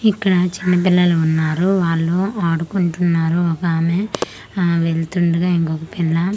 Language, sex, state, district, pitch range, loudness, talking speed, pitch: Telugu, female, Andhra Pradesh, Manyam, 165-180 Hz, -18 LUFS, 125 wpm, 175 Hz